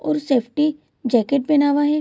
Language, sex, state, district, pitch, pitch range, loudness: Hindi, female, Bihar, Kishanganj, 290 Hz, 270-300 Hz, -19 LUFS